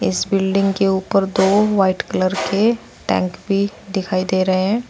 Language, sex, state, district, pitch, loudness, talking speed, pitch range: Hindi, female, Uttar Pradesh, Saharanpur, 195 Hz, -18 LUFS, 170 wpm, 185-200 Hz